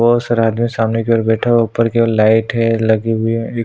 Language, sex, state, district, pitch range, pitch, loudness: Hindi, male, Chhattisgarh, Sukma, 110-115 Hz, 115 Hz, -15 LUFS